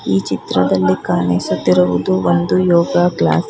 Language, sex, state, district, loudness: Kannada, female, Karnataka, Bangalore, -15 LUFS